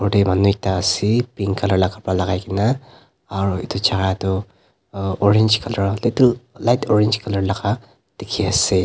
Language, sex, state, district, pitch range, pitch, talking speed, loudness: Nagamese, male, Nagaland, Dimapur, 95-110 Hz, 100 Hz, 155 wpm, -19 LUFS